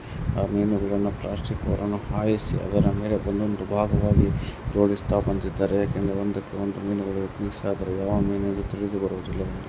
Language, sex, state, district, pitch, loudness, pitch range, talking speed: Kannada, male, Karnataka, Mysore, 100 Hz, -26 LUFS, 100-105 Hz, 120 wpm